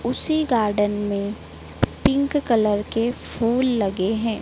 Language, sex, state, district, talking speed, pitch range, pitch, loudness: Hindi, female, Madhya Pradesh, Dhar, 120 wpm, 205-250 Hz, 225 Hz, -22 LUFS